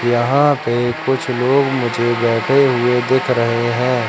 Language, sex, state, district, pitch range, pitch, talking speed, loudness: Hindi, male, Madhya Pradesh, Katni, 120-130 Hz, 125 Hz, 145 wpm, -16 LUFS